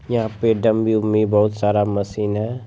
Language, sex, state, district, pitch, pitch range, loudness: Hindi, male, Bihar, Saharsa, 110 Hz, 105-110 Hz, -19 LUFS